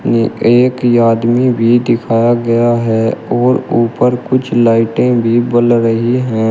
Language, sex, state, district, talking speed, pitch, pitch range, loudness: Hindi, male, Uttar Pradesh, Shamli, 130 wpm, 120 Hz, 115-125 Hz, -12 LUFS